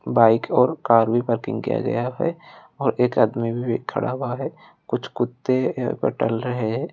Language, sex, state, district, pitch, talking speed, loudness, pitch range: Hindi, male, Odisha, Khordha, 120 Hz, 180 wpm, -22 LUFS, 115-125 Hz